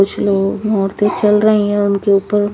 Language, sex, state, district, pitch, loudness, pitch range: Hindi, female, Haryana, Charkhi Dadri, 205 Hz, -14 LUFS, 200-210 Hz